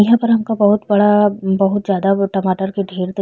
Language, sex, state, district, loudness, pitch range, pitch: Bhojpuri, female, Uttar Pradesh, Ghazipur, -15 LUFS, 195-210 Hz, 200 Hz